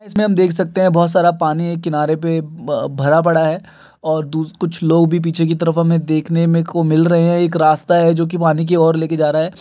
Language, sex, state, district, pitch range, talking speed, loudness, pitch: Hindi, male, Uttar Pradesh, Gorakhpur, 160-170 Hz, 260 wpm, -15 LUFS, 165 Hz